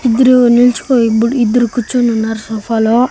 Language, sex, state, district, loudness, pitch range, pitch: Telugu, male, Andhra Pradesh, Annamaya, -12 LUFS, 225-250 Hz, 240 Hz